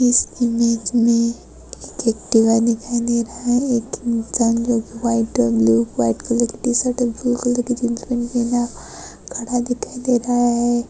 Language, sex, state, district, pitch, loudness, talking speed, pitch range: Hindi, female, Maharashtra, Sindhudurg, 235 Hz, -19 LUFS, 105 wpm, 230-245 Hz